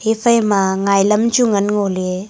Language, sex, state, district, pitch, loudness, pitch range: Wancho, female, Arunachal Pradesh, Longding, 205 Hz, -15 LUFS, 195-220 Hz